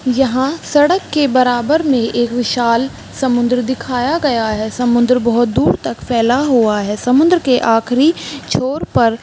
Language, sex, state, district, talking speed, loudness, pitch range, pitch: Hindi, female, Chhattisgarh, Balrampur, 155 wpm, -14 LUFS, 235-270 Hz, 250 Hz